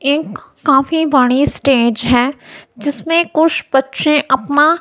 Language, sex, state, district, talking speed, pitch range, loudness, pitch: Hindi, female, Punjab, Kapurthala, 110 wpm, 265-305 Hz, -14 LUFS, 280 Hz